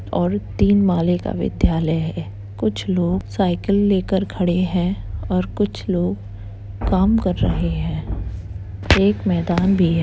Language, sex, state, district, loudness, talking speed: Hindi, female, Bihar, Gaya, -20 LUFS, 150 wpm